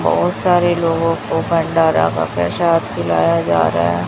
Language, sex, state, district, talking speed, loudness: Hindi, male, Chhattisgarh, Raipur, 160 wpm, -16 LUFS